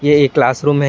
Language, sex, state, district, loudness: Hindi, male, Tripura, West Tripura, -13 LUFS